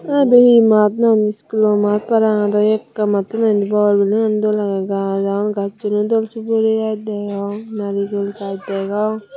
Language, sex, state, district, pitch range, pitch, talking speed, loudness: Chakma, female, Tripura, Unakoti, 200-220 Hz, 210 Hz, 190 wpm, -16 LUFS